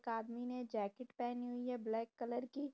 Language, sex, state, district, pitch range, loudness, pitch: Hindi, female, Uttar Pradesh, Jyotiba Phule Nagar, 230-250 Hz, -43 LUFS, 245 Hz